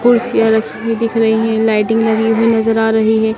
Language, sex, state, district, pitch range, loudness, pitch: Hindi, female, Madhya Pradesh, Dhar, 220-225 Hz, -13 LUFS, 225 Hz